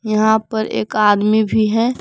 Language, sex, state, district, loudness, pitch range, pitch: Hindi, female, Jharkhand, Palamu, -16 LUFS, 215-220 Hz, 220 Hz